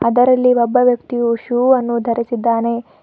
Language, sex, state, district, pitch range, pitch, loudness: Kannada, female, Karnataka, Bidar, 235-250 Hz, 240 Hz, -15 LUFS